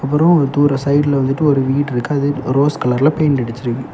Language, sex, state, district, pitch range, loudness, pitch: Tamil, male, Tamil Nadu, Kanyakumari, 130-145 Hz, -15 LUFS, 140 Hz